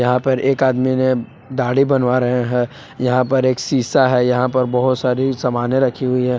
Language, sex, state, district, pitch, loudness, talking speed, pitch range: Hindi, male, Jharkhand, Palamu, 130 Hz, -17 LUFS, 205 wpm, 125-130 Hz